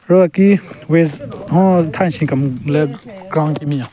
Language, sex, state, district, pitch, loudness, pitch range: Rengma, male, Nagaland, Kohima, 155 Hz, -15 LUFS, 145-185 Hz